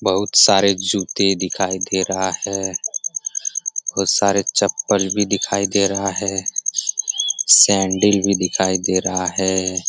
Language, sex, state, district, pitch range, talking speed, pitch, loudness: Hindi, male, Bihar, Jamui, 95-100 Hz, 125 wpm, 95 Hz, -17 LUFS